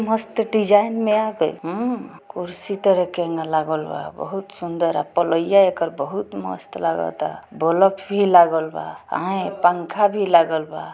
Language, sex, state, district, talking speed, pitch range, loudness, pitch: Bhojpuri, female, Bihar, Gopalganj, 150 wpm, 165-205 Hz, -20 LUFS, 180 Hz